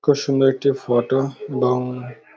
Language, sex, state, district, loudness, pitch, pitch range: Bengali, male, West Bengal, Dakshin Dinajpur, -20 LUFS, 135 Hz, 125-140 Hz